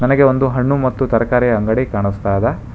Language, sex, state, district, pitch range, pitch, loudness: Kannada, male, Karnataka, Bangalore, 115-130 Hz, 125 Hz, -16 LUFS